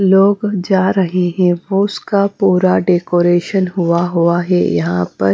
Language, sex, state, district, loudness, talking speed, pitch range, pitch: Hindi, female, Punjab, Fazilka, -14 LUFS, 145 wpm, 175-195 Hz, 180 Hz